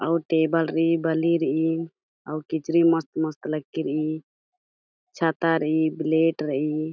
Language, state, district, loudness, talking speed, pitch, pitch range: Kurukh, Chhattisgarh, Jashpur, -24 LUFS, 130 wpm, 160 Hz, 155-165 Hz